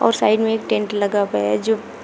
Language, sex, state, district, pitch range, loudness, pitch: Hindi, female, Uttar Pradesh, Shamli, 200-225 Hz, -19 LUFS, 210 Hz